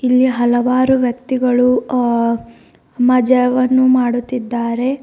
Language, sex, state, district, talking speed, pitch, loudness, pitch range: Kannada, female, Karnataka, Bidar, 70 wpm, 250 Hz, -15 LUFS, 240-255 Hz